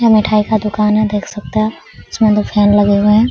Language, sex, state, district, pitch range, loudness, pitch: Hindi, female, Jharkhand, Sahebganj, 205-215 Hz, -13 LUFS, 210 Hz